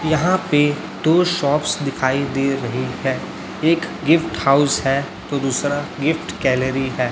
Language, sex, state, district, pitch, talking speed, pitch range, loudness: Hindi, male, Chhattisgarh, Raipur, 145 Hz, 145 wpm, 135-160 Hz, -19 LUFS